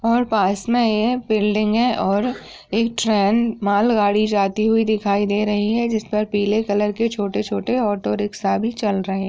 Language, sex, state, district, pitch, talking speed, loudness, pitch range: Hindi, female, Uttar Pradesh, Gorakhpur, 215 Hz, 195 wpm, -19 LUFS, 205-230 Hz